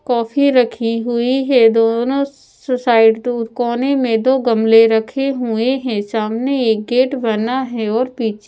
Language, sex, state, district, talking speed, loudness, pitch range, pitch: Hindi, female, Bihar, Patna, 150 wpm, -15 LUFS, 225-260 Hz, 240 Hz